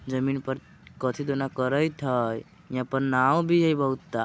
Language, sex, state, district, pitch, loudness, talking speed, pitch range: Bajjika, male, Bihar, Vaishali, 135 Hz, -26 LUFS, 200 wpm, 130-150 Hz